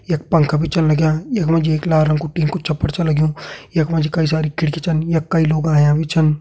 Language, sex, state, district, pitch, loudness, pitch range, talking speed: Hindi, male, Uttarakhand, Tehri Garhwal, 160 Hz, -17 LUFS, 155-165 Hz, 280 wpm